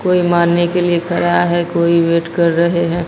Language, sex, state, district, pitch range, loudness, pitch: Hindi, female, Bihar, Katihar, 170-175 Hz, -14 LUFS, 175 Hz